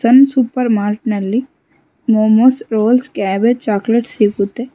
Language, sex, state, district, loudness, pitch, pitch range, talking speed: Kannada, female, Karnataka, Bangalore, -14 LUFS, 230 Hz, 210-250 Hz, 115 wpm